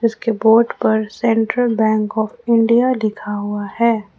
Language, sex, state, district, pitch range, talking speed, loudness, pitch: Hindi, female, Jharkhand, Ranchi, 215-235 Hz, 145 wpm, -17 LUFS, 225 Hz